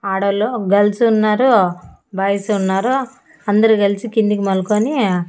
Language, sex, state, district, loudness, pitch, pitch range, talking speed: Telugu, female, Andhra Pradesh, Annamaya, -16 LUFS, 210 Hz, 195-225 Hz, 100 wpm